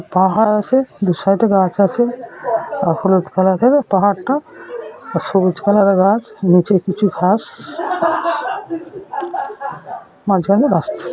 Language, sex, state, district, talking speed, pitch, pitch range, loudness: Bengali, female, West Bengal, North 24 Parganas, 140 wpm, 205 Hz, 190-285 Hz, -16 LUFS